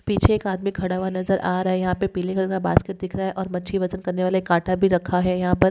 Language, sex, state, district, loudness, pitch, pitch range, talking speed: Hindi, female, Maharashtra, Nagpur, -23 LUFS, 185 Hz, 180-190 Hz, 295 wpm